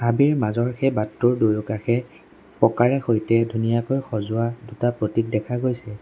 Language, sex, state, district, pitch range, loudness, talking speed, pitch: Assamese, male, Assam, Sonitpur, 110-120 Hz, -22 LUFS, 130 wpm, 115 Hz